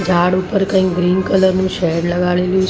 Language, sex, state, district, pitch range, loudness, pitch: Gujarati, female, Maharashtra, Mumbai Suburban, 180-190 Hz, -15 LUFS, 185 Hz